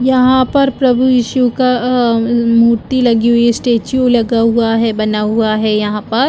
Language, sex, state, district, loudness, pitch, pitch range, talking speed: Hindi, female, Chhattisgarh, Bilaspur, -12 LUFS, 235 Hz, 225-255 Hz, 200 wpm